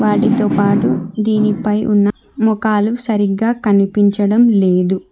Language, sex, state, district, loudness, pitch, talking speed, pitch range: Telugu, female, Telangana, Hyderabad, -14 LUFS, 210 Hz, 80 wpm, 205-220 Hz